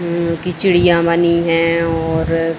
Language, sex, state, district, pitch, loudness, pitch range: Hindi, female, Uttar Pradesh, Jalaun, 170 Hz, -15 LUFS, 165-170 Hz